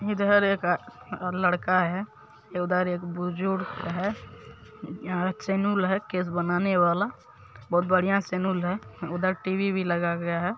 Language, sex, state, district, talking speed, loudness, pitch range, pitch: Maithili, male, Bihar, Supaul, 135 wpm, -26 LUFS, 175-195 Hz, 185 Hz